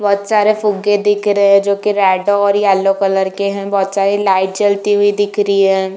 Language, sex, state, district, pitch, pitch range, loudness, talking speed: Hindi, female, Uttar Pradesh, Jalaun, 200 Hz, 195-205 Hz, -13 LUFS, 210 wpm